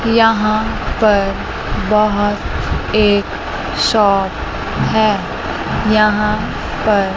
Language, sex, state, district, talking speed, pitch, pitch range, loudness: Hindi, female, Chandigarh, Chandigarh, 65 wpm, 210 Hz, 205-215 Hz, -16 LUFS